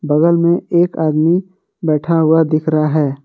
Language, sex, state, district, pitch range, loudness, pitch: Hindi, male, Jharkhand, Garhwa, 155-170 Hz, -14 LUFS, 160 Hz